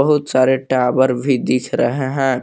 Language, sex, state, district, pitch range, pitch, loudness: Hindi, male, Jharkhand, Palamu, 125-135 Hz, 130 Hz, -17 LUFS